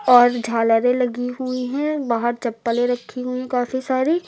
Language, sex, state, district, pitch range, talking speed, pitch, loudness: Hindi, female, Uttar Pradesh, Lucknow, 240-255 Hz, 155 wpm, 250 Hz, -20 LUFS